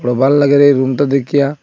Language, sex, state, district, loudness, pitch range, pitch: Bengali, male, Assam, Hailakandi, -12 LUFS, 135-145 Hz, 140 Hz